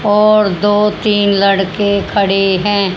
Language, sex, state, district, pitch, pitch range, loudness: Hindi, male, Haryana, Jhajjar, 200 Hz, 195-205 Hz, -12 LUFS